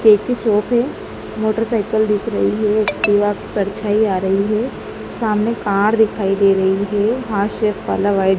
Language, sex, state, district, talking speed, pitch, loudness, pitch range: Hindi, male, Madhya Pradesh, Dhar, 180 wpm, 210 Hz, -17 LUFS, 200-220 Hz